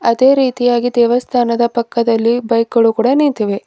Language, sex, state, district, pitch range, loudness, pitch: Kannada, female, Karnataka, Bidar, 230-245 Hz, -14 LUFS, 235 Hz